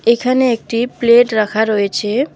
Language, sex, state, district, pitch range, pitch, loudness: Bengali, female, West Bengal, Alipurduar, 215-245 Hz, 235 Hz, -14 LUFS